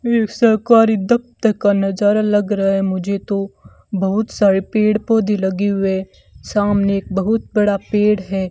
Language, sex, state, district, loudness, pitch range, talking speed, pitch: Hindi, female, Rajasthan, Bikaner, -17 LUFS, 195-215 Hz, 155 wpm, 205 Hz